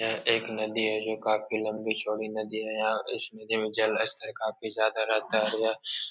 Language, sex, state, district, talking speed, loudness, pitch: Hindi, male, Uttar Pradesh, Etah, 185 wpm, -29 LUFS, 110 Hz